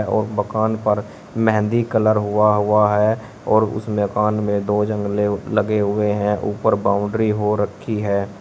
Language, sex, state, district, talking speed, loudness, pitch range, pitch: Hindi, male, Uttar Pradesh, Shamli, 155 wpm, -19 LUFS, 105-110 Hz, 105 Hz